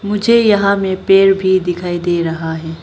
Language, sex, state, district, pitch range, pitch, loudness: Hindi, female, Arunachal Pradesh, Lower Dibang Valley, 175-200 Hz, 190 Hz, -14 LUFS